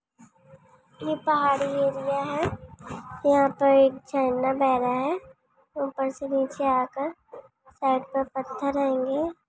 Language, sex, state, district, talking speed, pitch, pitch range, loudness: Hindi, female, Goa, North and South Goa, 120 wpm, 275 Hz, 265-285 Hz, -25 LUFS